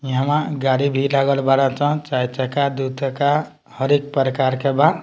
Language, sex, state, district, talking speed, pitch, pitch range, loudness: Bhojpuri, male, Bihar, Muzaffarpur, 165 wpm, 140 Hz, 135-145 Hz, -19 LUFS